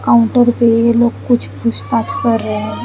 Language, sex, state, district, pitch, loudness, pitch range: Hindi, female, Chandigarh, Chandigarh, 230 Hz, -14 LUFS, 225-235 Hz